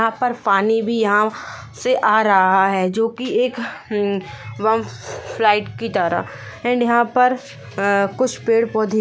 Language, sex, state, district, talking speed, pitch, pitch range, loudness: Hindi, female, Jharkhand, Sahebganj, 140 wpm, 220 Hz, 200-240 Hz, -18 LUFS